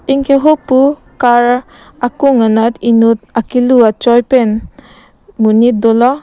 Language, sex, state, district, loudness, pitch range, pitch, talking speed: Karbi, female, Assam, Karbi Anglong, -11 LUFS, 230-265 Hz, 245 Hz, 105 wpm